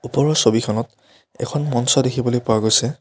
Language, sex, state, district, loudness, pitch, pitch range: Assamese, male, Assam, Kamrup Metropolitan, -18 LUFS, 120 Hz, 115-135 Hz